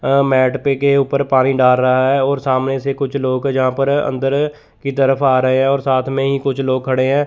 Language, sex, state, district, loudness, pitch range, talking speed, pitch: Hindi, male, Chandigarh, Chandigarh, -16 LUFS, 130-140 Hz, 240 wpm, 135 Hz